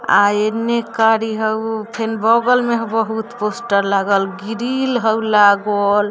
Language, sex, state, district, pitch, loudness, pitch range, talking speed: Bajjika, female, Bihar, Vaishali, 220 Hz, -17 LUFS, 205-230 Hz, 145 wpm